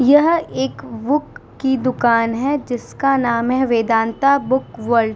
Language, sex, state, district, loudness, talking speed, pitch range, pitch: Hindi, female, Uttar Pradesh, Muzaffarnagar, -18 LUFS, 150 wpm, 230-275 Hz, 255 Hz